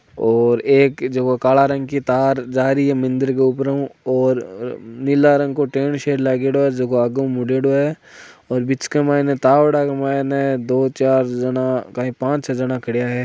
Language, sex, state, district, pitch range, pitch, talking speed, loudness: Hindi, male, Rajasthan, Nagaur, 130-140 Hz, 135 Hz, 180 wpm, -18 LUFS